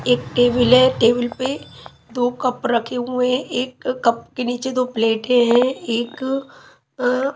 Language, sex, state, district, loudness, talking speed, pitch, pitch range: Hindi, female, Himachal Pradesh, Shimla, -19 LUFS, 155 wpm, 250 Hz, 245-255 Hz